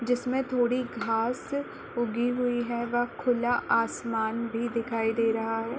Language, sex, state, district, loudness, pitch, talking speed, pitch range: Hindi, female, Chhattisgarh, Korba, -28 LUFS, 240 Hz, 145 wpm, 230-245 Hz